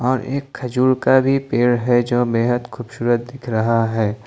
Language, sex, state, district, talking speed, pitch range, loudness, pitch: Hindi, male, Jharkhand, Ranchi, 180 wpm, 115-130 Hz, -18 LUFS, 120 Hz